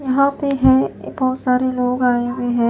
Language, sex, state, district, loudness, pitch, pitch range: Hindi, female, Himachal Pradesh, Shimla, -18 LUFS, 250 Hz, 240-260 Hz